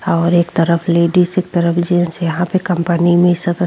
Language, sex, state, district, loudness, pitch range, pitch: Bhojpuri, female, Uttar Pradesh, Ghazipur, -14 LUFS, 170-175 Hz, 175 Hz